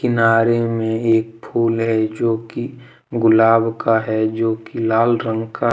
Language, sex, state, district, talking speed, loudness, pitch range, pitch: Hindi, male, Jharkhand, Deoghar, 155 wpm, -18 LUFS, 110-115 Hz, 115 Hz